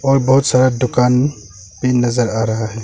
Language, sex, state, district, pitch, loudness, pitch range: Hindi, male, Arunachal Pradesh, Longding, 125 Hz, -15 LUFS, 110-130 Hz